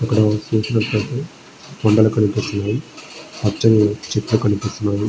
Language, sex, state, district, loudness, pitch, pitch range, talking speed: Telugu, male, Andhra Pradesh, Srikakulam, -18 LUFS, 105 Hz, 105-110 Hz, 95 wpm